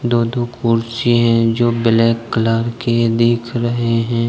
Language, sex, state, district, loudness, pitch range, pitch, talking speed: Hindi, male, Jharkhand, Deoghar, -16 LUFS, 115-120 Hz, 115 Hz, 155 wpm